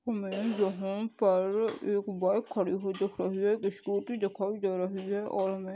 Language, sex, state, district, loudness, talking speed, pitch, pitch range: Hindi, male, Maharashtra, Chandrapur, -31 LUFS, 220 wpm, 200 Hz, 190-205 Hz